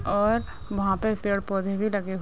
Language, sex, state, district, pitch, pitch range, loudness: Hindi, female, Uttar Pradesh, Gorakhpur, 200 Hz, 195-215 Hz, -26 LUFS